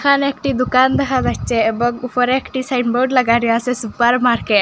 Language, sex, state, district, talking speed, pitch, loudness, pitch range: Bengali, female, Assam, Hailakandi, 195 wpm, 250 Hz, -16 LUFS, 235-260 Hz